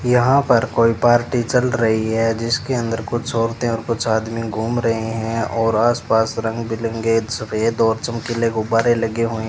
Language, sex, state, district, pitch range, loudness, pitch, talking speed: Hindi, male, Rajasthan, Bikaner, 115-120 Hz, -19 LUFS, 115 Hz, 175 wpm